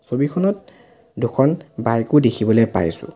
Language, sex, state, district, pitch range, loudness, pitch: Assamese, male, Assam, Sonitpur, 115-185 Hz, -18 LUFS, 135 Hz